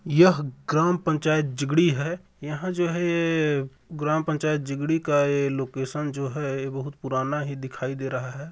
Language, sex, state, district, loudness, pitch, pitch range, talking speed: Hindi, male, Chhattisgarh, Balrampur, -25 LUFS, 150 Hz, 135-160 Hz, 175 wpm